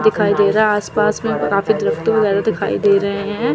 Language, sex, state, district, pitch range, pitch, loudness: Hindi, female, Chandigarh, Chandigarh, 200-215 Hz, 210 Hz, -16 LUFS